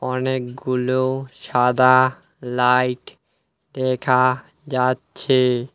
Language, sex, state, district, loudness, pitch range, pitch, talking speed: Bengali, male, West Bengal, Alipurduar, -19 LUFS, 125-130 Hz, 130 Hz, 50 wpm